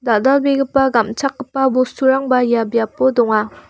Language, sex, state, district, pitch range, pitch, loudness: Garo, female, Meghalaya, West Garo Hills, 230-270 Hz, 255 Hz, -16 LUFS